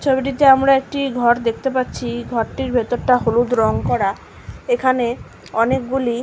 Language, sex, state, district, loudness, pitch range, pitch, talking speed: Bengali, female, West Bengal, Malda, -18 LUFS, 240-265 Hz, 245 Hz, 125 wpm